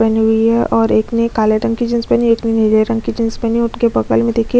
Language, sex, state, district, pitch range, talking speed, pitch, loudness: Hindi, female, Chhattisgarh, Kabirdham, 220-235 Hz, 325 wpm, 230 Hz, -14 LUFS